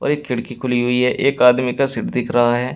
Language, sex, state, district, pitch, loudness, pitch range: Hindi, male, Uttar Pradesh, Shamli, 125 Hz, -18 LUFS, 125-130 Hz